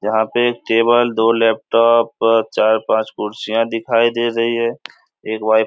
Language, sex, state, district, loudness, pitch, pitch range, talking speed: Hindi, male, Bihar, Samastipur, -16 LUFS, 115 Hz, 110-115 Hz, 150 wpm